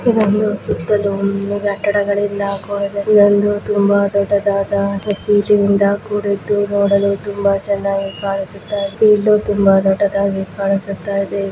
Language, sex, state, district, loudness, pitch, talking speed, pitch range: Kannada, female, Karnataka, Bijapur, -16 LUFS, 200 Hz, 75 wpm, 200-205 Hz